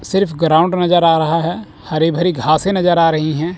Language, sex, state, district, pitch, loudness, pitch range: Hindi, male, Chandigarh, Chandigarh, 165 Hz, -15 LUFS, 160-180 Hz